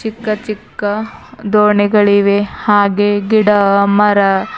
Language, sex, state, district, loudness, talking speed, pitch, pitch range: Kannada, female, Karnataka, Bidar, -13 LUFS, 80 wpm, 205 Hz, 200-215 Hz